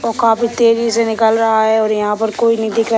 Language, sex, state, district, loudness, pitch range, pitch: Hindi, female, Bihar, Sitamarhi, -14 LUFS, 220-230 Hz, 225 Hz